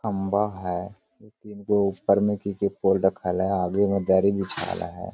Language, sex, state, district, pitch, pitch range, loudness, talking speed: Hindi, male, Jharkhand, Sahebganj, 100 Hz, 95-105 Hz, -24 LUFS, 185 wpm